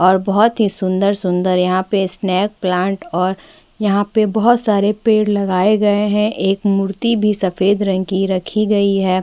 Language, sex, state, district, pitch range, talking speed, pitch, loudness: Hindi, female, Chhattisgarh, Bastar, 185-210 Hz, 170 wpm, 200 Hz, -16 LUFS